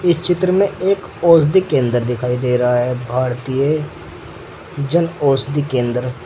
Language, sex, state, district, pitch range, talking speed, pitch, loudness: Hindi, male, Uttar Pradesh, Saharanpur, 125-170 Hz, 125 wpm, 140 Hz, -17 LUFS